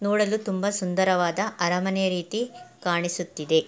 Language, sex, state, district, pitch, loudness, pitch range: Kannada, female, Karnataka, Mysore, 185 Hz, -25 LUFS, 175-205 Hz